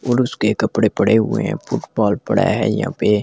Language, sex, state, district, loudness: Hindi, male, Delhi, New Delhi, -18 LUFS